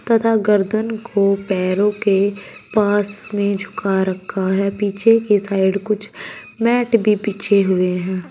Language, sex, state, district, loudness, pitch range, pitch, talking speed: Hindi, female, Uttar Pradesh, Shamli, -18 LUFS, 195-215 Hz, 205 Hz, 135 wpm